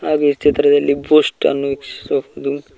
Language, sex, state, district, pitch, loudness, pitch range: Kannada, male, Karnataka, Koppal, 145 Hz, -16 LUFS, 140-145 Hz